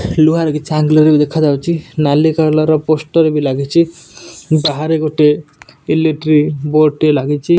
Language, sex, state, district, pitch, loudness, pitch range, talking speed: Odia, male, Odisha, Nuapada, 155 Hz, -13 LUFS, 150-160 Hz, 125 wpm